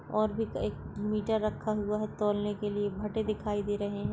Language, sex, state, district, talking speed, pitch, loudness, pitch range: Hindi, female, Maharashtra, Solapur, 220 wpm, 210 Hz, -32 LUFS, 205-215 Hz